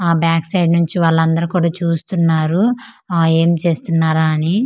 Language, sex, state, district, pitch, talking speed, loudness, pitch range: Telugu, female, Andhra Pradesh, Manyam, 170 Hz, 130 wpm, -15 LUFS, 165-175 Hz